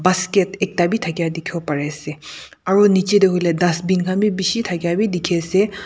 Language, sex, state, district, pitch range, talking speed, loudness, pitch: Nagamese, female, Nagaland, Kohima, 170-195 Hz, 195 wpm, -18 LUFS, 180 Hz